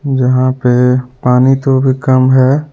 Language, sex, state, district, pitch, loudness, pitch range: Hindi, male, Jharkhand, Deoghar, 130 Hz, -11 LUFS, 125-130 Hz